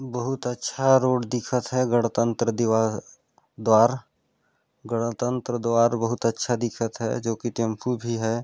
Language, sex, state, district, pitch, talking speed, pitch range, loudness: Hindi, male, Chhattisgarh, Balrampur, 115 Hz, 135 wpm, 115-125 Hz, -24 LUFS